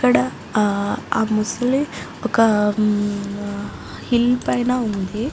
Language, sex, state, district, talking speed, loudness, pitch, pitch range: Telugu, female, Andhra Pradesh, Guntur, 100 wpm, -20 LUFS, 215 Hz, 205-240 Hz